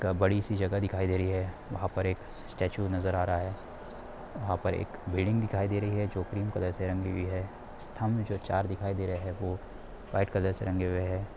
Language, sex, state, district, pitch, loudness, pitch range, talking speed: Hindi, male, Bihar, Darbhanga, 95 Hz, -32 LUFS, 95-100 Hz, 235 wpm